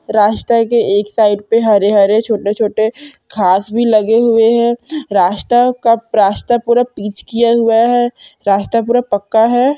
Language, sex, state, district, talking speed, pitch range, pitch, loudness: Hindi, female, Chhattisgarh, Sukma, 145 wpm, 205-235 Hz, 225 Hz, -13 LUFS